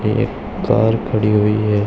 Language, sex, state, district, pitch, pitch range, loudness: Hindi, male, Uttar Pradesh, Shamli, 105 Hz, 105-110 Hz, -17 LUFS